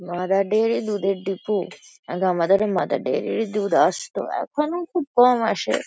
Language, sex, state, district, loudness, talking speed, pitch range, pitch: Bengali, female, West Bengal, Kolkata, -22 LUFS, 155 wpm, 190-230 Hz, 210 Hz